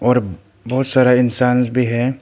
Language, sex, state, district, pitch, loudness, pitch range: Hindi, male, Arunachal Pradesh, Papum Pare, 125 Hz, -16 LUFS, 120-125 Hz